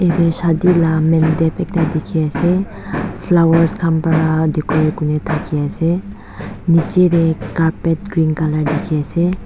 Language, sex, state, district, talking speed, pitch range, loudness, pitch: Nagamese, female, Nagaland, Dimapur, 135 wpm, 155-170 Hz, -16 LUFS, 165 Hz